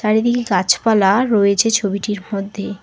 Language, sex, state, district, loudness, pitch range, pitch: Bengali, female, West Bengal, Alipurduar, -16 LUFS, 200-225 Hz, 205 Hz